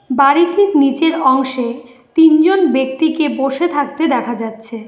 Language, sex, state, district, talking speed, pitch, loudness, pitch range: Bengali, female, West Bengal, Alipurduar, 110 wpm, 275 Hz, -14 LUFS, 255-320 Hz